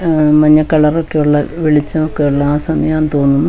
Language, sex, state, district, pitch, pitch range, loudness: Malayalam, female, Kerala, Wayanad, 150 Hz, 150-155 Hz, -12 LUFS